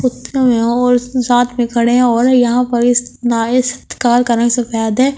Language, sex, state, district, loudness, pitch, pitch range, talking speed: Hindi, female, Delhi, New Delhi, -13 LUFS, 245 Hz, 235-250 Hz, 115 wpm